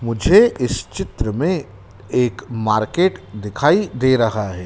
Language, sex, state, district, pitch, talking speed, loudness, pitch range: Hindi, male, Madhya Pradesh, Dhar, 110 Hz, 130 wpm, -18 LUFS, 105-130 Hz